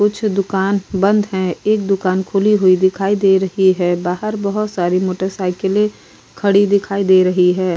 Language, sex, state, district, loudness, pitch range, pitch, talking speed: Hindi, female, Uttar Pradesh, Jyotiba Phule Nagar, -16 LUFS, 185-200 Hz, 195 Hz, 160 wpm